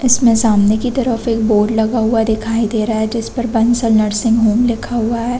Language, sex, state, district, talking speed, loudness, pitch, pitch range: Hindi, female, Chhattisgarh, Bastar, 210 wpm, -15 LUFS, 225 Hz, 220-235 Hz